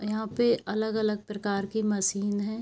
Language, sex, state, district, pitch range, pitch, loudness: Hindi, female, Bihar, Araria, 205-220 Hz, 210 Hz, -28 LUFS